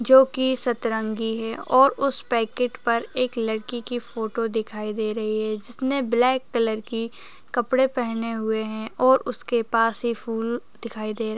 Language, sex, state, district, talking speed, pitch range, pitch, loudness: Hindi, female, Uttar Pradesh, Jyotiba Phule Nagar, 165 wpm, 220-250 Hz, 230 Hz, -24 LUFS